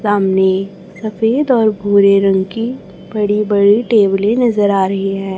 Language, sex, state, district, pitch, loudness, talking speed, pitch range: Hindi, male, Chhattisgarh, Raipur, 205 Hz, -13 LUFS, 145 wpm, 195-215 Hz